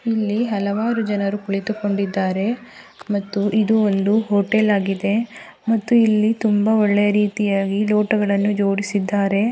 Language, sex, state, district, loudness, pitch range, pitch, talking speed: Kannada, female, Karnataka, Raichur, -19 LUFS, 200-220 Hz, 210 Hz, 100 wpm